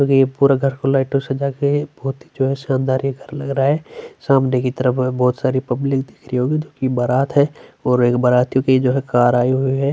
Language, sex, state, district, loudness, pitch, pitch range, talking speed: Hindi, male, Chhattisgarh, Sukma, -18 LUFS, 135 Hz, 130-140 Hz, 250 wpm